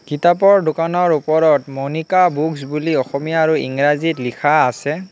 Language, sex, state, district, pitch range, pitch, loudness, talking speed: Assamese, male, Assam, Kamrup Metropolitan, 145-165 Hz, 155 Hz, -16 LUFS, 130 wpm